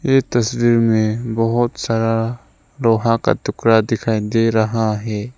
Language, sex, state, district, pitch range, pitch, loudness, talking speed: Hindi, male, Arunachal Pradesh, Lower Dibang Valley, 110-120 Hz, 115 Hz, -17 LUFS, 135 wpm